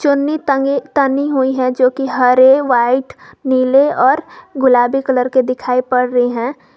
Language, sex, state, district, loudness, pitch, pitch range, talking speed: Hindi, female, Jharkhand, Garhwa, -14 LUFS, 260 Hz, 250-275 Hz, 160 wpm